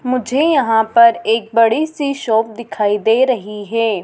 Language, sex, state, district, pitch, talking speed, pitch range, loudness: Hindi, female, Madhya Pradesh, Dhar, 230 Hz, 165 wpm, 220-255 Hz, -15 LUFS